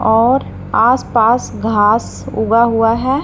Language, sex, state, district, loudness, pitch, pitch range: Hindi, female, Punjab, Fazilka, -14 LUFS, 225 Hz, 220-240 Hz